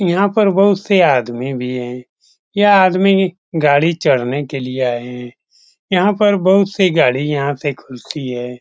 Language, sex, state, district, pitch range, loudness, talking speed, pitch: Hindi, male, Bihar, Saran, 125-190 Hz, -15 LUFS, 160 wpm, 150 Hz